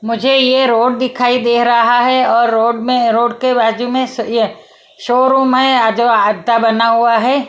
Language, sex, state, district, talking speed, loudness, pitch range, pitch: Hindi, female, Punjab, Kapurthala, 175 wpm, -12 LUFS, 230-255 Hz, 240 Hz